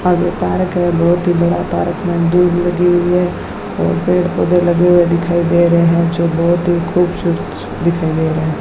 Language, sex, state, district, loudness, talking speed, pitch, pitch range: Hindi, female, Rajasthan, Bikaner, -14 LUFS, 200 wpm, 175 Hz, 170-175 Hz